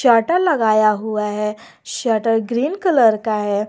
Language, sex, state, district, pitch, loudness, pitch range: Hindi, female, Jharkhand, Garhwa, 225 Hz, -17 LUFS, 215-235 Hz